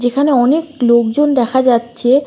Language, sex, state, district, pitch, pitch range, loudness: Bengali, female, West Bengal, North 24 Parganas, 255 Hz, 240-285 Hz, -13 LUFS